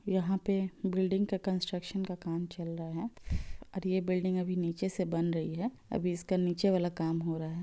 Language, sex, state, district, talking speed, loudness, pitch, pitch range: Hindi, female, Bihar, Muzaffarpur, 210 wpm, -34 LUFS, 185 Hz, 170-190 Hz